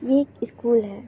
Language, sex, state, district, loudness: Hindi, female, West Bengal, Jalpaiguri, -23 LUFS